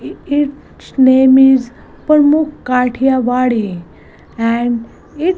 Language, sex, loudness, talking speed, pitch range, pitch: English, female, -13 LUFS, 100 wpm, 240-290 Hz, 260 Hz